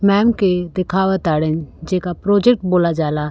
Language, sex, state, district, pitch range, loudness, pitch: Bhojpuri, female, Uttar Pradesh, Gorakhpur, 165-195 Hz, -17 LUFS, 180 Hz